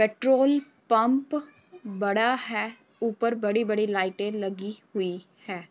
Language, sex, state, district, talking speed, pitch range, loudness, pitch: Hindi, female, Uttar Pradesh, Varanasi, 105 wpm, 205-250 Hz, -26 LUFS, 215 Hz